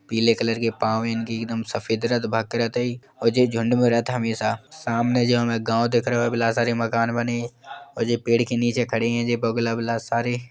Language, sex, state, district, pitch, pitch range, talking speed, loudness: Bundeli, male, Uttar Pradesh, Jalaun, 115 Hz, 115-120 Hz, 195 wpm, -23 LUFS